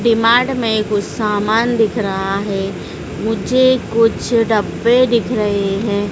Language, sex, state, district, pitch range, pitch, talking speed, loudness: Hindi, female, Madhya Pradesh, Dhar, 205-235 Hz, 220 Hz, 125 wpm, -16 LUFS